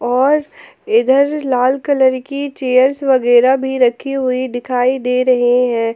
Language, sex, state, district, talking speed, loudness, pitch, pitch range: Hindi, female, Jharkhand, Palamu, 140 wpm, -14 LUFS, 255 Hz, 250-275 Hz